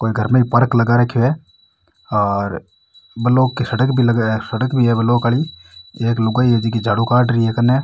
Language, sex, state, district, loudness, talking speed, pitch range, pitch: Rajasthani, male, Rajasthan, Nagaur, -16 LUFS, 235 wpm, 105-125 Hz, 115 Hz